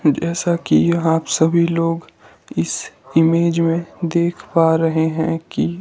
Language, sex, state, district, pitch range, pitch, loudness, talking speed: Hindi, male, Himachal Pradesh, Shimla, 160-170 Hz, 165 Hz, -18 LUFS, 135 wpm